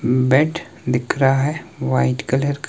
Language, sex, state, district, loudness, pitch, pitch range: Hindi, male, Himachal Pradesh, Shimla, -19 LUFS, 135 Hz, 120-145 Hz